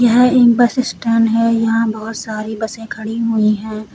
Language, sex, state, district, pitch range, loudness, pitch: Hindi, female, Uttar Pradesh, Lalitpur, 220-230 Hz, -15 LUFS, 225 Hz